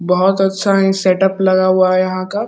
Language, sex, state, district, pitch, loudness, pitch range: Hindi, male, Bihar, Muzaffarpur, 190 Hz, -14 LUFS, 185-195 Hz